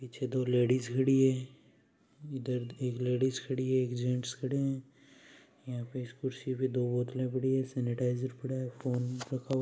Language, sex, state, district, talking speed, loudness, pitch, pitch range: Marwari, male, Rajasthan, Churu, 180 wpm, -33 LUFS, 130 Hz, 125-130 Hz